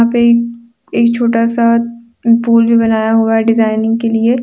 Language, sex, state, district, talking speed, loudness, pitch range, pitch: Hindi, female, Jharkhand, Deoghar, 135 wpm, -12 LUFS, 225-235 Hz, 230 Hz